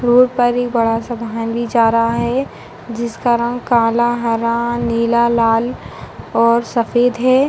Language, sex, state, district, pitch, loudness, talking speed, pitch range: Hindi, female, Uttar Pradesh, Hamirpur, 235 Hz, -16 LUFS, 145 wpm, 230-240 Hz